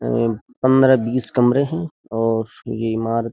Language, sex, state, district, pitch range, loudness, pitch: Hindi, male, Uttar Pradesh, Jyotiba Phule Nagar, 115-130 Hz, -18 LUFS, 115 Hz